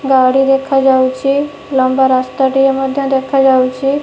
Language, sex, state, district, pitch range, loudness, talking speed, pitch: Odia, female, Odisha, Nuapada, 260-270 Hz, -12 LUFS, 120 wpm, 270 Hz